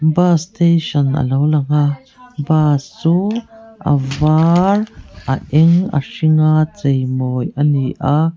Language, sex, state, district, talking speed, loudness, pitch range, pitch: Mizo, female, Mizoram, Aizawl, 130 wpm, -15 LUFS, 140-170 Hz, 150 Hz